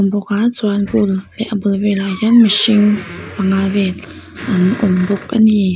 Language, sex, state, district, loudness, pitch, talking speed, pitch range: Mizo, female, Mizoram, Aizawl, -14 LUFS, 205 Hz, 165 wpm, 195-215 Hz